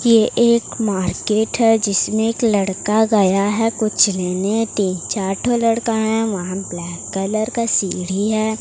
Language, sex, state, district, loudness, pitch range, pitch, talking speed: Hindi, female, Odisha, Sambalpur, -18 LUFS, 195-225 Hz, 215 Hz, 155 wpm